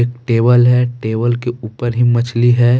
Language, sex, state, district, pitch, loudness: Hindi, male, Jharkhand, Deoghar, 120 Hz, -14 LUFS